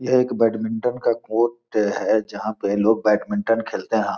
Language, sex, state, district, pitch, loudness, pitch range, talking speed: Hindi, male, Bihar, Gopalganj, 110 Hz, -21 LUFS, 105-115 Hz, 155 wpm